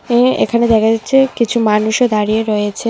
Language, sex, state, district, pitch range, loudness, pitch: Bengali, female, Tripura, West Tripura, 215-240 Hz, -13 LUFS, 225 Hz